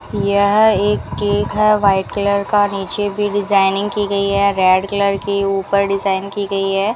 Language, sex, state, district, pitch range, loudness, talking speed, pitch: Hindi, female, Rajasthan, Bikaner, 195-205 Hz, -16 LUFS, 180 wpm, 200 Hz